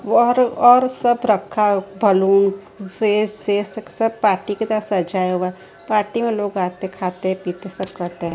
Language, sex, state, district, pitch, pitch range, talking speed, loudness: Hindi, female, Gujarat, Gandhinagar, 205 Hz, 190-220 Hz, 145 wpm, -19 LUFS